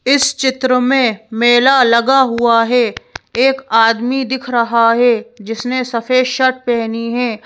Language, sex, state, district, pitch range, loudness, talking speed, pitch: Hindi, female, Madhya Pradesh, Bhopal, 230-260 Hz, -13 LUFS, 135 wpm, 245 Hz